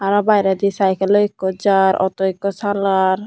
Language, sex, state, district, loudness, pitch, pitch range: Chakma, female, Tripura, Unakoti, -17 LUFS, 195 Hz, 190-200 Hz